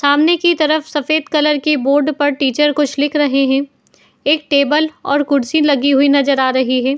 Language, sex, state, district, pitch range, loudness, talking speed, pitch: Hindi, female, Uttar Pradesh, Jalaun, 275-300 Hz, -14 LUFS, 195 wpm, 290 Hz